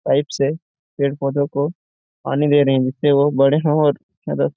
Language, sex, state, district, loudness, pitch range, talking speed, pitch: Hindi, male, Jharkhand, Jamtara, -18 LUFS, 135-145 Hz, 185 wpm, 140 Hz